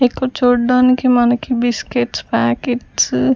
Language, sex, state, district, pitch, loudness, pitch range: Telugu, female, Andhra Pradesh, Sri Satya Sai, 245 Hz, -15 LUFS, 220-250 Hz